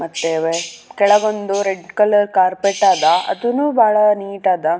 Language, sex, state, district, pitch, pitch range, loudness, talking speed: Kannada, female, Karnataka, Raichur, 200 Hz, 175-210 Hz, -16 LUFS, 125 wpm